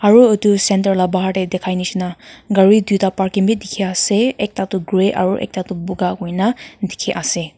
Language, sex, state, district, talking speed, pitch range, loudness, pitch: Nagamese, female, Nagaland, Kohima, 200 wpm, 185-205 Hz, -16 LUFS, 190 Hz